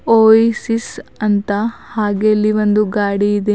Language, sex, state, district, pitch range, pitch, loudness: Kannada, female, Karnataka, Bidar, 205-225 Hz, 210 Hz, -15 LUFS